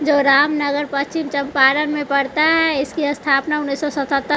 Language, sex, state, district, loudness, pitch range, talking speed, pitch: Hindi, female, Bihar, West Champaran, -17 LUFS, 280-300 Hz, 180 wpm, 290 Hz